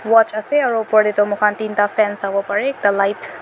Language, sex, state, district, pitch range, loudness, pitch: Nagamese, female, Nagaland, Dimapur, 205-225 Hz, -17 LUFS, 210 Hz